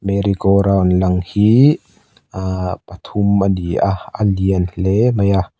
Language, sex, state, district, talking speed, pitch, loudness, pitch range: Mizo, male, Mizoram, Aizawl, 160 wpm, 100 Hz, -16 LUFS, 95-100 Hz